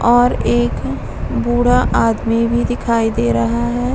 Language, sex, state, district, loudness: Hindi, female, Bihar, Vaishali, -16 LUFS